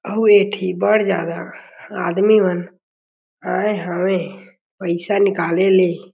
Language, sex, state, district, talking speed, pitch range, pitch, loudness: Chhattisgarhi, male, Chhattisgarh, Jashpur, 115 wpm, 180-205 Hz, 190 Hz, -17 LUFS